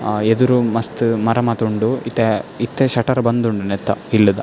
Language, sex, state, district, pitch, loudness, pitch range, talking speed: Tulu, male, Karnataka, Dakshina Kannada, 115 Hz, -17 LUFS, 105-120 Hz, 205 wpm